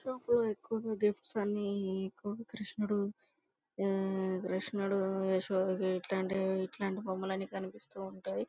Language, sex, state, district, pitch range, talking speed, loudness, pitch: Telugu, female, Andhra Pradesh, Guntur, 190-210 Hz, 85 wpm, -36 LUFS, 195 Hz